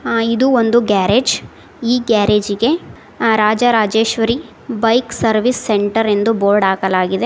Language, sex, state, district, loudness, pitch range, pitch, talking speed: Kannada, female, Karnataka, Koppal, -15 LUFS, 210-235 Hz, 225 Hz, 115 wpm